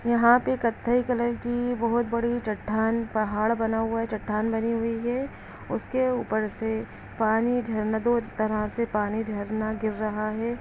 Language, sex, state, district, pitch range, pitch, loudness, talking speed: Hindi, female, Chhattisgarh, Balrampur, 215-235 Hz, 225 Hz, -26 LUFS, 170 wpm